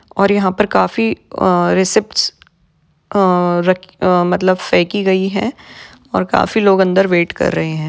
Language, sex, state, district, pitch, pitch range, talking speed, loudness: Hindi, female, Maharashtra, Aurangabad, 185 Hz, 180-200 Hz, 160 wpm, -15 LUFS